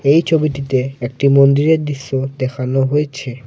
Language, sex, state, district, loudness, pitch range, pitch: Bengali, male, Assam, Kamrup Metropolitan, -16 LUFS, 130-145 Hz, 140 Hz